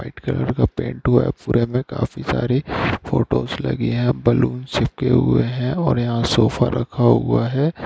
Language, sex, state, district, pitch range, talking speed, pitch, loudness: Hindi, male, Bihar, Saran, 115-125 Hz, 175 wpm, 120 Hz, -19 LUFS